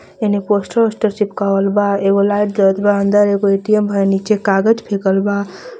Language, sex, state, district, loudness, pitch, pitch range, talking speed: Bhojpuri, female, Jharkhand, Palamu, -15 LUFS, 205 Hz, 195-210 Hz, 175 wpm